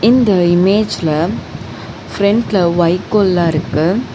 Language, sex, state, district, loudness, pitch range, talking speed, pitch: Tamil, female, Tamil Nadu, Chennai, -14 LUFS, 170-210 Hz, 60 wpm, 180 Hz